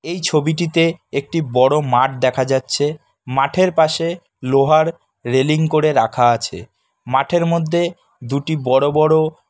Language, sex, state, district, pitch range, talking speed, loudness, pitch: Bengali, male, West Bengal, Kolkata, 130-165 Hz, 120 wpm, -17 LUFS, 155 Hz